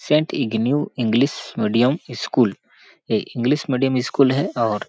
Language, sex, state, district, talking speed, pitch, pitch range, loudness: Hindi, male, Chhattisgarh, Sarguja, 145 wpm, 130 Hz, 120-140 Hz, -20 LUFS